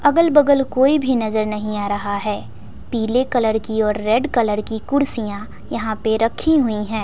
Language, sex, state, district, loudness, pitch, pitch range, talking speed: Hindi, female, Bihar, West Champaran, -19 LUFS, 220 Hz, 215-265 Hz, 185 wpm